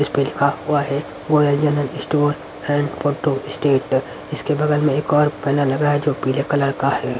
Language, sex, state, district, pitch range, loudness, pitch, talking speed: Hindi, male, Haryana, Rohtak, 140-150 Hz, -19 LUFS, 145 Hz, 200 wpm